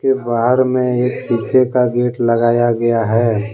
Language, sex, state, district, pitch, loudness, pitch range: Hindi, male, Jharkhand, Deoghar, 120 Hz, -15 LUFS, 115-125 Hz